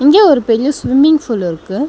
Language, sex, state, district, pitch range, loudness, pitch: Tamil, female, Tamil Nadu, Chennai, 225-295 Hz, -12 LUFS, 275 Hz